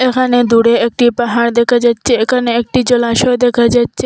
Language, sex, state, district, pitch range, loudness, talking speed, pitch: Bengali, female, Assam, Hailakandi, 235-245 Hz, -12 LUFS, 160 wpm, 240 Hz